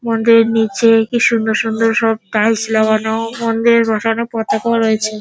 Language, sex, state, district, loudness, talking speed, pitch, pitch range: Bengali, female, West Bengal, Dakshin Dinajpur, -14 LUFS, 140 wpm, 225 Hz, 220-230 Hz